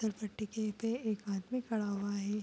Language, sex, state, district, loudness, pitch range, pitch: Hindi, female, Bihar, Gopalganj, -37 LUFS, 205-220 Hz, 210 Hz